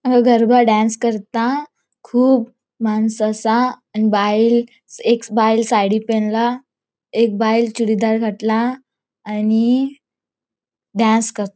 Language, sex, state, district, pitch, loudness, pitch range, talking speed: Konkani, female, Goa, North and South Goa, 230 Hz, -17 LUFS, 220-240 Hz, 115 wpm